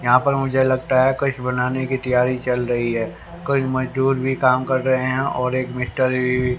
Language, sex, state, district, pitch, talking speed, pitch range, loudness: Hindi, male, Haryana, Rohtak, 130 Hz, 200 wpm, 125-130 Hz, -20 LUFS